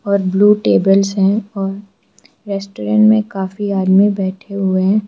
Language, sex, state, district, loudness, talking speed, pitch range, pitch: Hindi, female, Arunachal Pradesh, Lower Dibang Valley, -15 LUFS, 140 wpm, 195-205 Hz, 195 Hz